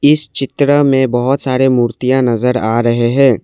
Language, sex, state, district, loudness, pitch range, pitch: Hindi, male, Assam, Kamrup Metropolitan, -13 LUFS, 120-135 Hz, 130 Hz